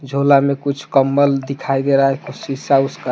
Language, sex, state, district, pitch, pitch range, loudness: Hindi, male, Jharkhand, Palamu, 135 Hz, 135-140 Hz, -16 LUFS